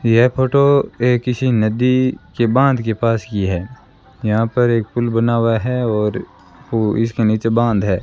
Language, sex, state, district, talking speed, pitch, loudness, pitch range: Hindi, female, Rajasthan, Bikaner, 170 wpm, 115 Hz, -17 LUFS, 110-125 Hz